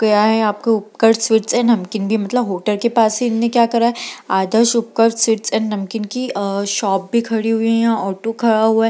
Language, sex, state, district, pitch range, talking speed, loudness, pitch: Hindi, female, Bihar, Gaya, 210-230 Hz, 200 wpm, -16 LUFS, 225 Hz